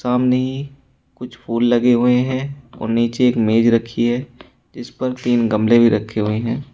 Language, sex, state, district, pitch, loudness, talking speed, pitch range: Hindi, male, Uttar Pradesh, Shamli, 120 Hz, -17 LUFS, 185 wpm, 115-130 Hz